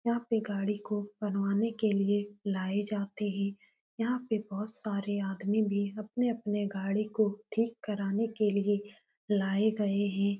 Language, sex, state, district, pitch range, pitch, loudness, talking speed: Hindi, female, Uttar Pradesh, Etah, 200-215 Hz, 205 Hz, -32 LUFS, 150 wpm